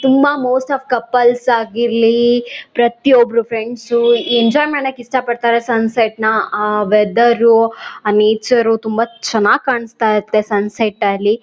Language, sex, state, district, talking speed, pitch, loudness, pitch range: Kannada, female, Karnataka, Mysore, 115 wpm, 235 Hz, -14 LUFS, 220-245 Hz